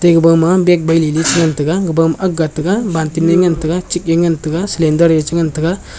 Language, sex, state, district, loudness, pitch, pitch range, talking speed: Wancho, male, Arunachal Pradesh, Longding, -13 LUFS, 165 Hz, 160-175 Hz, 240 wpm